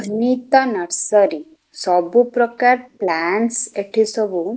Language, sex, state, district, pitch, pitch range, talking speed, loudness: Odia, female, Odisha, Khordha, 230 Hz, 205-250 Hz, 105 wpm, -17 LUFS